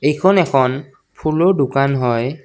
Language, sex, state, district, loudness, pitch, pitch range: Assamese, male, Assam, Kamrup Metropolitan, -16 LUFS, 140 Hz, 130-155 Hz